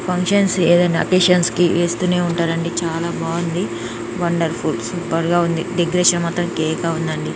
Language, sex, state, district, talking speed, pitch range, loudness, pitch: Telugu, female, Telangana, Nalgonda, 130 wpm, 165-180 Hz, -18 LUFS, 175 Hz